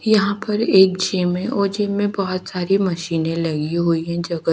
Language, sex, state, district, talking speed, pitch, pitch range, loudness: Hindi, female, Haryana, Charkhi Dadri, 200 wpm, 185 Hz, 170-200 Hz, -19 LUFS